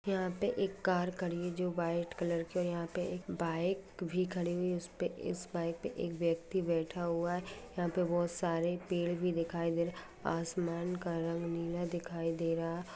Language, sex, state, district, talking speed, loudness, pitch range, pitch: Hindi, female, Jharkhand, Sahebganj, 175 wpm, -36 LUFS, 170-180 Hz, 175 Hz